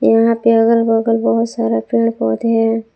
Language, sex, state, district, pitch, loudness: Hindi, female, Jharkhand, Palamu, 225 Hz, -15 LUFS